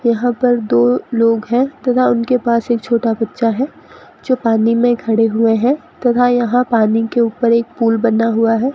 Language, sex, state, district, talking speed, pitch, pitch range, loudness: Hindi, female, Rajasthan, Bikaner, 190 wpm, 235 Hz, 225-245 Hz, -15 LUFS